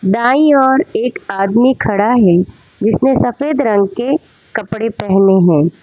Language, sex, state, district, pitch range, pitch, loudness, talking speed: Hindi, female, Gujarat, Valsad, 195-265 Hz, 220 Hz, -13 LUFS, 135 wpm